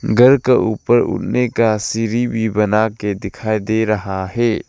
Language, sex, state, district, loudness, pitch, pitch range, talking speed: Hindi, male, Arunachal Pradesh, Lower Dibang Valley, -17 LUFS, 110 Hz, 105-120 Hz, 155 wpm